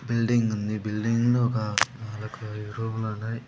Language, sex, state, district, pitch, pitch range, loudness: Telugu, male, Andhra Pradesh, Sri Satya Sai, 110 Hz, 110-115 Hz, -27 LUFS